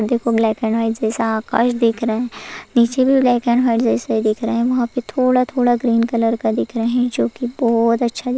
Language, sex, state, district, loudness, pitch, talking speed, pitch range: Hindi, female, Goa, North and South Goa, -18 LUFS, 235 Hz, 245 wpm, 225-245 Hz